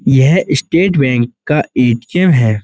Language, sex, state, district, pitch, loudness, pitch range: Hindi, male, Uttar Pradesh, Muzaffarnagar, 135 Hz, -12 LUFS, 120-165 Hz